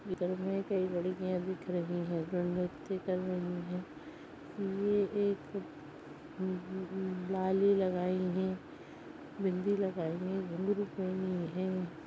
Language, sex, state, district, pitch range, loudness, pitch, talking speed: Hindi, female, Chhattisgarh, Sarguja, 180-195 Hz, -35 LUFS, 185 Hz, 95 wpm